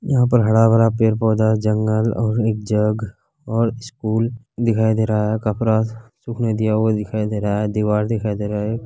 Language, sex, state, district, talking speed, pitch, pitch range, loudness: Hindi, male, Bihar, Kishanganj, 185 wpm, 110 Hz, 105-115 Hz, -19 LUFS